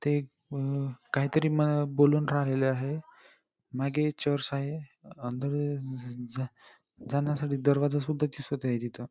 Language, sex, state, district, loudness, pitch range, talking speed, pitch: Marathi, male, Maharashtra, Nagpur, -30 LUFS, 135-145 Hz, 100 wpm, 140 Hz